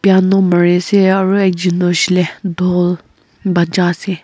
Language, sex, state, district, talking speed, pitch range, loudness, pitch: Nagamese, female, Nagaland, Kohima, 115 wpm, 175-190 Hz, -13 LUFS, 180 Hz